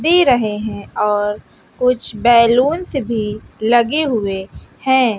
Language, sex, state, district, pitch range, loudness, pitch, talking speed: Hindi, female, Bihar, West Champaran, 210-260 Hz, -16 LUFS, 235 Hz, 115 wpm